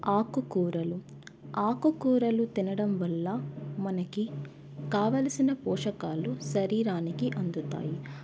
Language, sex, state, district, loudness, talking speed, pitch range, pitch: Telugu, female, Telangana, Nalgonda, -30 LUFS, 65 wpm, 155-215 Hz, 185 Hz